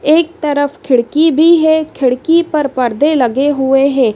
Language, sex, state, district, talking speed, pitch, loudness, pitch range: Hindi, female, Madhya Pradesh, Dhar, 160 wpm, 285 Hz, -12 LUFS, 260-315 Hz